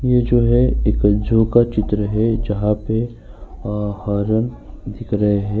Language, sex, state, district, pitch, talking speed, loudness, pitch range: Hindi, male, Uttar Pradesh, Jyotiba Phule Nagar, 110 Hz, 160 wpm, -18 LUFS, 105-120 Hz